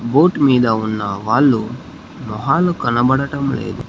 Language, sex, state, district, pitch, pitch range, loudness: Telugu, male, Telangana, Hyderabad, 125 Hz, 110-140 Hz, -16 LUFS